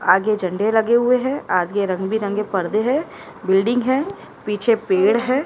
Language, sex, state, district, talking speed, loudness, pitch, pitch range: Hindi, male, Maharashtra, Mumbai Suburban, 165 wpm, -19 LUFS, 215 Hz, 195-245 Hz